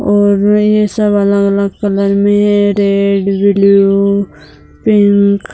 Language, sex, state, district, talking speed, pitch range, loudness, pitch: Hindi, female, Uttar Pradesh, Etah, 120 wpm, 200-205 Hz, -11 LUFS, 200 Hz